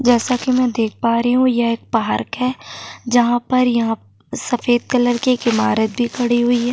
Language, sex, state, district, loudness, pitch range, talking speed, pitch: Hindi, female, Uttar Pradesh, Jyotiba Phule Nagar, -17 LUFS, 230-250 Hz, 205 wpm, 240 Hz